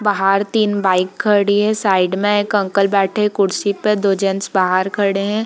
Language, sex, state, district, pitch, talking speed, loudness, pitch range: Hindi, female, Bihar, Purnia, 200 Hz, 200 wpm, -16 LUFS, 195-205 Hz